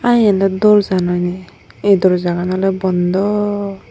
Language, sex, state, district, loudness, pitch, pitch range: Chakma, female, Tripura, Unakoti, -15 LUFS, 195 Hz, 180-205 Hz